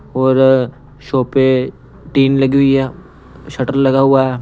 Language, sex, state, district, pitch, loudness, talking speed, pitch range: Hindi, male, Punjab, Pathankot, 135 Hz, -14 LUFS, 150 wpm, 130-135 Hz